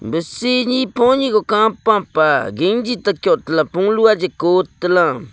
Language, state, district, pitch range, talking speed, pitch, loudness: Nyishi, Arunachal Pradesh, Papum Pare, 175-235 Hz, 125 wpm, 210 Hz, -16 LUFS